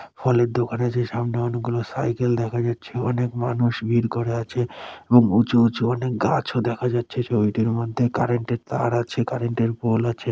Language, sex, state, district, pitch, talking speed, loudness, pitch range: Bengali, male, West Bengal, Dakshin Dinajpur, 120 Hz, 165 wpm, -22 LUFS, 115-120 Hz